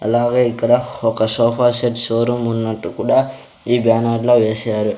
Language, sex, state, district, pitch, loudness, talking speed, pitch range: Telugu, male, Andhra Pradesh, Sri Satya Sai, 115 Hz, -17 LUFS, 145 wpm, 115-120 Hz